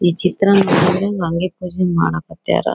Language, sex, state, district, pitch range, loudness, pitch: Kannada, female, Karnataka, Bellary, 170-185 Hz, -17 LUFS, 180 Hz